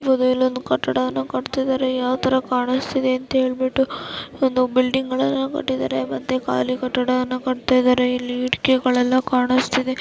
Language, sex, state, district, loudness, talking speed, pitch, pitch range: Kannada, female, Karnataka, Dharwad, -20 LUFS, 120 wpm, 255 Hz, 250-260 Hz